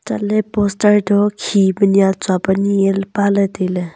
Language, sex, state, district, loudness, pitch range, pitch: Wancho, female, Arunachal Pradesh, Longding, -15 LUFS, 195-205 Hz, 200 Hz